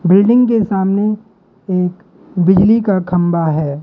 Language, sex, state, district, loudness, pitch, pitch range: Hindi, male, Madhya Pradesh, Katni, -14 LUFS, 190 Hz, 180-210 Hz